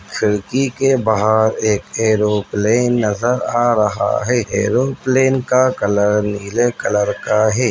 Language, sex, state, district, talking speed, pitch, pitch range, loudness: Hindi, male, Uttar Pradesh, Etah, 125 wpm, 110 Hz, 105-125 Hz, -16 LUFS